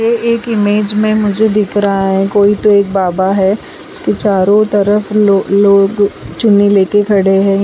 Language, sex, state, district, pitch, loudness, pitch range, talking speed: Hindi, female, Bihar, West Champaran, 205 Hz, -11 LUFS, 195-210 Hz, 175 wpm